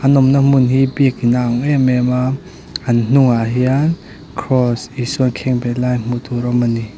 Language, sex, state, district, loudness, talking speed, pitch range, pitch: Mizo, male, Mizoram, Aizawl, -15 LUFS, 225 wpm, 120-135 Hz, 125 Hz